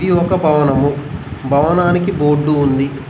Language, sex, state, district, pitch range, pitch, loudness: Telugu, male, Telangana, Mahabubabad, 140-175 Hz, 150 Hz, -14 LUFS